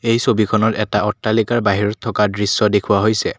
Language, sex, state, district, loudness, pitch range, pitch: Assamese, male, Assam, Kamrup Metropolitan, -17 LUFS, 105-110 Hz, 105 Hz